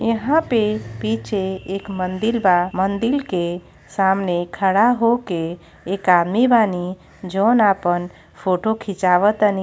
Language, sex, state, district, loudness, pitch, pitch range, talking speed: Bhojpuri, female, Uttar Pradesh, Gorakhpur, -19 LUFS, 195 Hz, 180-215 Hz, 110 wpm